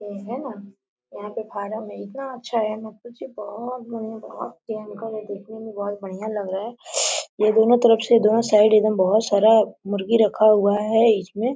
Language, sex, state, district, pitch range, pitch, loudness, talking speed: Hindi, female, Jharkhand, Sahebganj, 205-230 Hz, 215 Hz, -20 LUFS, 195 wpm